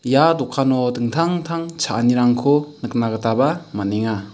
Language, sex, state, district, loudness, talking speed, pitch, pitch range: Garo, male, Meghalaya, South Garo Hills, -19 LUFS, 110 wpm, 125 Hz, 115-150 Hz